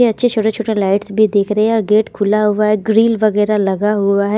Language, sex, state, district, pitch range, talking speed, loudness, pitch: Hindi, female, Bihar, Patna, 205-220 Hz, 235 wpm, -14 LUFS, 210 Hz